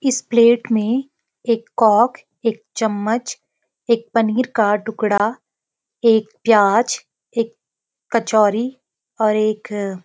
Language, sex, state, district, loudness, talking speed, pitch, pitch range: Hindi, female, Uttarakhand, Uttarkashi, -18 LUFS, 105 wpm, 225 Hz, 215-235 Hz